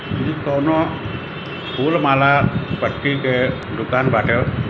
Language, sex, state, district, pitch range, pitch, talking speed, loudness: Hindi, male, Bihar, Gopalganj, 130-160 Hz, 140 Hz, 100 wpm, -19 LUFS